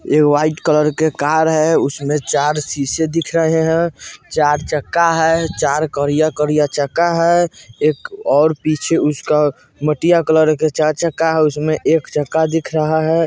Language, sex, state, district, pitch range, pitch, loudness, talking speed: Bajjika, male, Bihar, Vaishali, 150-160 Hz, 155 Hz, -16 LUFS, 165 wpm